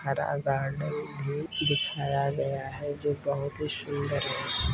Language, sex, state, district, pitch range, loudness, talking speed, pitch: Hindi, male, Uttar Pradesh, Varanasi, 140-150 Hz, -30 LUFS, 140 wpm, 145 Hz